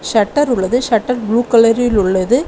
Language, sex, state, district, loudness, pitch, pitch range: Tamil, female, Tamil Nadu, Kanyakumari, -14 LUFS, 235 Hz, 215-245 Hz